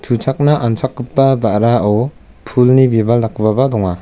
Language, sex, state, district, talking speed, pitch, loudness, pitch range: Garo, male, Meghalaya, South Garo Hills, 105 wpm, 120 Hz, -14 LUFS, 110-130 Hz